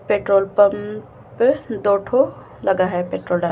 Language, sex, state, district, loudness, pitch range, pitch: Hindi, female, Chhattisgarh, Raipur, -19 LUFS, 195-215 Hz, 200 Hz